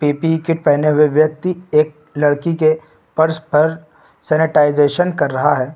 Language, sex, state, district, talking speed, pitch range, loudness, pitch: Hindi, male, Uttar Pradesh, Lucknow, 135 wpm, 150-160 Hz, -16 LUFS, 155 Hz